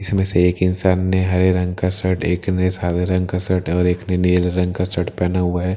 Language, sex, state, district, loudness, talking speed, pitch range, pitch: Hindi, male, Bihar, Katihar, -18 LUFS, 260 wpm, 90-95 Hz, 90 Hz